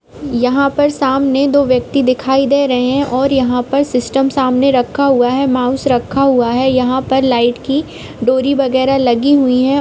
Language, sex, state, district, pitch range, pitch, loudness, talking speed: Hindi, female, Uttar Pradesh, Budaun, 250-275 Hz, 265 Hz, -13 LUFS, 185 wpm